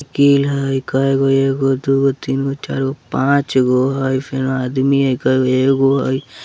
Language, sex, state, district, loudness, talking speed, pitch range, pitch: Bajjika, male, Bihar, Vaishali, -16 LUFS, 160 wpm, 130-135 Hz, 135 Hz